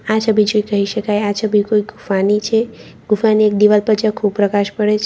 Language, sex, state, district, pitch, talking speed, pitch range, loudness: Gujarati, female, Gujarat, Valsad, 210 Hz, 225 wpm, 205-215 Hz, -15 LUFS